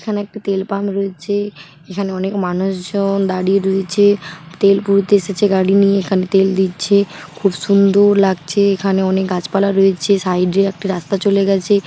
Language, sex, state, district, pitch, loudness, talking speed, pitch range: Bengali, female, West Bengal, Paschim Medinipur, 195 Hz, -15 LUFS, 155 wpm, 190-200 Hz